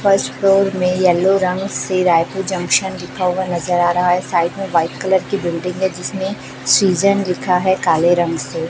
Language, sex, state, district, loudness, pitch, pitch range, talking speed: Hindi, female, Chhattisgarh, Raipur, -16 LUFS, 185 Hz, 175-190 Hz, 195 wpm